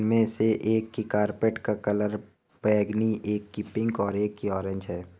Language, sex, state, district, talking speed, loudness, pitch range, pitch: Hindi, male, Uttar Pradesh, Hamirpur, 185 wpm, -27 LUFS, 105-110 Hz, 105 Hz